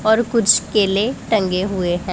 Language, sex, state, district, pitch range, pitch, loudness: Hindi, female, Punjab, Pathankot, 190-220 Hz, 205 Hz, -17 LUFS